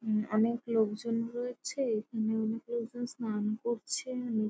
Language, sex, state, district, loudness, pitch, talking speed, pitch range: Bengali, female, West Bengal, Jalpaiguri, -33 LUFS, 230 Hz, 135 wpm, 220-240 Hz